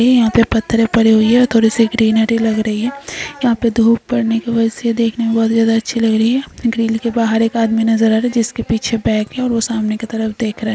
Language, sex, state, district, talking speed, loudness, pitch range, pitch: Hindi, female, Chhattisgarh, Bastar, 275 wpm, -15 LUFS, 225-230 Hz, 225 Hz